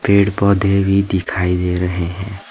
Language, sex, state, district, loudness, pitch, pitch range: Hindi, male, Himachal Pradesh, Shimla, -16 LUFS, 100 Hz, 90-100 Hz